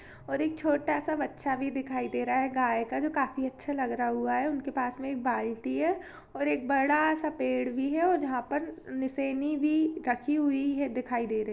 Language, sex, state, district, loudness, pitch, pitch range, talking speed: Hindi, female, Chhattisgarh, Rajnandgaon, -30 LUFS, 275 Hz, 250-295 Hz, 225 wpm